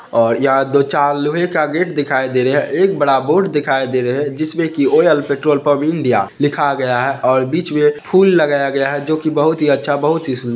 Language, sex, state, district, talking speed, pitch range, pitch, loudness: Hindi, male, Bihar, Madhepura, 235 wpm, 135-155 Hz, 145 Hz, -15 LUFS